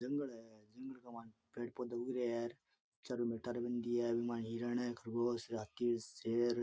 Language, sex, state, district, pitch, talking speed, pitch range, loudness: Rajasthani, male, Rajasthan, Churu, 120 Hz, 125 wpm, 115-120 Hz, -41 LUFS